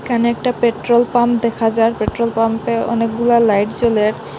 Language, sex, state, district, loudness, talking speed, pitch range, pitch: Bengali, female, Assam, Hailakandi, -16 LUFS, 150 wpm, 225-235 Hz, 235 Hz